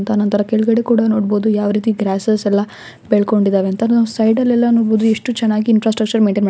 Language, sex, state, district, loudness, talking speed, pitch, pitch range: Kannada, female, Karnataka, Gulbarga, -15 LUFS, 185 wpm, 220 Hz, 205-225 Hz